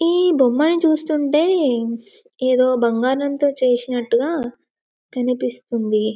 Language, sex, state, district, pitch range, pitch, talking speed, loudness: Telugu, female, Telangana, Karimnagar, 240-310 Hz, 255 Hz, 70 wpm, -19 LUFS